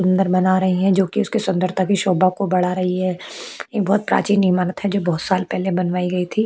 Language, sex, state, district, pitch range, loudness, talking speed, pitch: Hindi, female, Chhattisgarh, Korba, 180-195 Hz, -19 LUFS, 250 wpm, 185 Hz